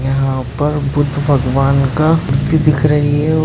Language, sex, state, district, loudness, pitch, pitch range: Hindi, male, Bihar, Jamui, -14 LUFS, 145 Hz, 135-150 Hz